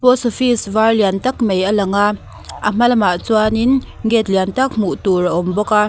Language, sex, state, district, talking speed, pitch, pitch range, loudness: Mizo, female, Mizoram, Aizawl, 225 wpm, 215 Hz, 195-240 Hz, -16 LUFS